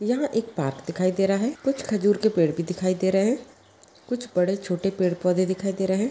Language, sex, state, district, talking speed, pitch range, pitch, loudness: Hindi, female, Chhattisgarh, Kabirdham, 245 wpm, 180-225 Hz, 195 Hz, -24 LUFS